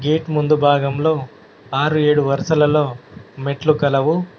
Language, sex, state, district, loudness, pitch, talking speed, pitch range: Telugu, male, Telangana, Mahabubabad, -17 LUFS, 150 Hz, 110 wpm, 140-155 Hz